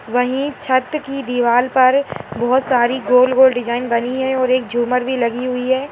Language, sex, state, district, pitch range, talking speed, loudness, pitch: Hindi, female, Bihar, Purnia, 245-260 Hz, 180 wpm, -16 LUFS, 255 Hz